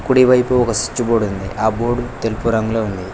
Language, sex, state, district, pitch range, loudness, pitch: Telugu, male, Telangana, Hyderabad, 110-120 Hz, -17 LUFS, 115 Hz